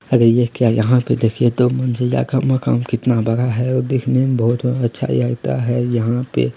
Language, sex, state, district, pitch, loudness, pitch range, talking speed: Hindi, male, Bihar, Lakhisarai, 120 Hz, -17 LUFS, 115-125 Hz, 200 wpm